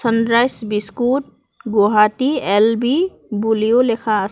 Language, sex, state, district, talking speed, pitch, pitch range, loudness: Assamese, female, Assam, Kamrup Metropolitan, 95 wpm, 230 Hz, 210-245 Hz, -17 LUFS